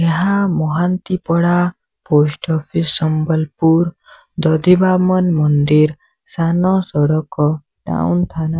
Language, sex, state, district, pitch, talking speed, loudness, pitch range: Odia, male, Odisha, Sambalpur, 165 Hz, 85 wpm, -16 LUFS, 155-180 Hz